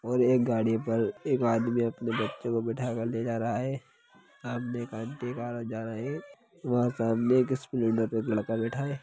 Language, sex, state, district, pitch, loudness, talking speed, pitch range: Hindi, male, Bihar, Lakhisarai, 120 Hz, -30 LUFS, 185 wpm, 115-125 Hz